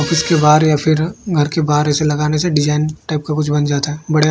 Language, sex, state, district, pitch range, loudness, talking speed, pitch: Hindi, male, Odisha, Malkangiri, 150-155 Hz, -15 LUFS, 250 wpm, 155 Hz